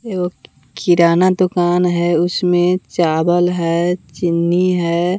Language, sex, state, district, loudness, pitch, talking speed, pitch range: Hindi, female, Bihar, West Champaran, -16 LUFS, 175 Hz, 105 wpm, 170-180 Hz